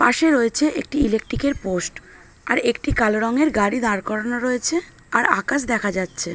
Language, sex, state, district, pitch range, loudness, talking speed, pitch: Bengali, female, West Bengal, Malda, 210-280 Hz, -20 LUFS, 170 wpm, 235 Hz